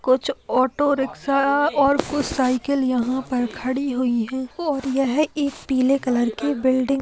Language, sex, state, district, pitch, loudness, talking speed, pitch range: Hindi, female, Bihar, Jahanabad, 265 Hz, -21 LUFS, 160 wpm, 255-280 Hz